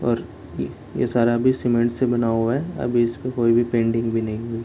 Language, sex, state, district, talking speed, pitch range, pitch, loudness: Hindi, male, Bihar, Gopalganj, 245 wpm, 115-120 Hz, 120 Hz, -21 LUFS